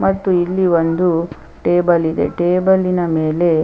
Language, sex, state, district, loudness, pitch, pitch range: Kannada, female, Karnataka, Chamarajanagar, -16 LUFS, 175 Hz, 165-180 Hz